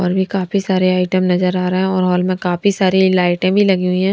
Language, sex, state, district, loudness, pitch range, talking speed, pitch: Hindi, female, Punjab, Fazilka, -15 LUFS, 180-190 Hz, 275 wpm, 185 Hz